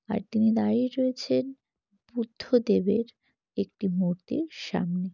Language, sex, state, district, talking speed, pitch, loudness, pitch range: Bengali, female, West Bengal, Jalpaiguri, 95 wpm, 220 Hz, -28 LUFS, 185-235 Hz